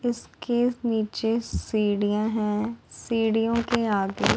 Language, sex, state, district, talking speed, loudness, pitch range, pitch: Hindi, female, Punjab, Pathankot, 95 wpm, -25 LUFS, 215-235 Hz, 225 Hz